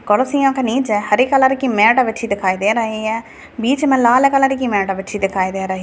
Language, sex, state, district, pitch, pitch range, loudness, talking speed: Hindi, female, Bihar, Purnia, 230 Hz, 205-265 Hz, -16 LUFS, 235 wpm